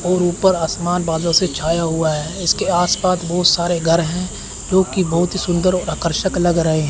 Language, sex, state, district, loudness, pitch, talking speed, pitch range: Hindi, male, Chandigarh, Chandigarh, -17 LUFS, 175 Hz, 210 wpm, 165-180 Hz